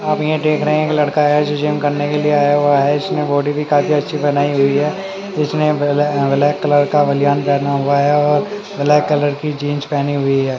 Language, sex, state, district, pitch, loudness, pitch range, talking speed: Hindi, male, Haryana, Charkhi Dadri, 145 Hz, -15 LUFS, 145-150 Hz, 245 wpm